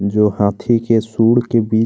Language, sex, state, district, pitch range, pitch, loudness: Hindi, male, Chhattisgarh, Kabirdham, 105-115 Hz, 115 Hz, -15 LUFS